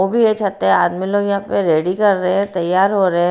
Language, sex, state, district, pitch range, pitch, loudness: Hindi, female, Bihar, Patna, 175-200 Hz, 190 Hz, -16 LUFS